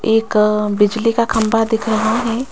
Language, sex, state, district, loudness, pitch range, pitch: Hindi, female, Rajasthan, Jaipur, -16 LUFS, 215-230 Hz, 225 Hz